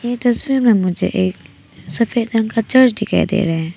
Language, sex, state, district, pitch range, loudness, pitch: Hindi, female, Arunachal Pradesh, Papum Pare, 180-240 Hz, -16 LUFS, 225 Hz